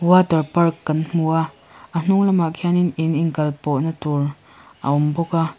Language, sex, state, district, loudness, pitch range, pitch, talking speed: Mizo, female, Mizoram, Aizawl, -20 LUFS, 150-170 Hz, 160 Hz, 170 wpm